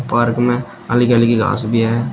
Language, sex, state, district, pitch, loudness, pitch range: Hindi, male, Uttar Pradesh, Shamli, 120 Hz, -16 LUFS, 115-120 Hz